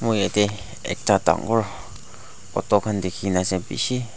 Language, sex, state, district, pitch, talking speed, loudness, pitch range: Nagamese, male, Nagaland, Dimapur, 100 Hz, 130 wpm, -23 LUFS, 95-110 Hz